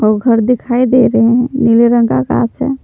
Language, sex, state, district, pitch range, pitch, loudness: Hindi, female, Jharkhand, Palamu, 230-250 Hz, 240 Hz, -11 LUFS